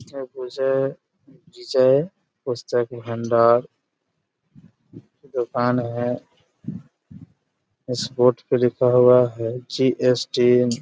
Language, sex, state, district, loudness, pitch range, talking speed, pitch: Hindi, male, Bihar, Jahanabad, -20 LUFS, 120-130 Hz, 85 wpm, 125 Hz